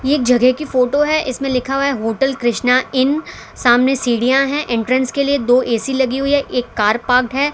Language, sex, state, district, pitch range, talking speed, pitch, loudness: Hindi, female, Gujarat, Valsad, 245-275 Hz, 215 wpm, 260 Hz, -16 LUFS